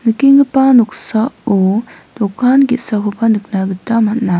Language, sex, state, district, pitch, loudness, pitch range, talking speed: Garo, female, Meghalaya, West Garo Hills, 225 Hz, -13 LUFS, 205-250 Hz, 95 wpm